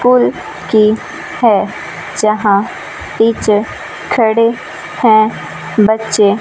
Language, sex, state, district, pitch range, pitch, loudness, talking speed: Hindi, female, Rajasthan, Bikaner, 215-230 Hz, 220 Hz, -13 LUFS, 75 wpm